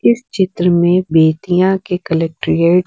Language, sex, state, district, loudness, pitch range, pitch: Hindi, female, Bihar, West Champaran, -14 LUFS, 165-190 Hz, 180 Hz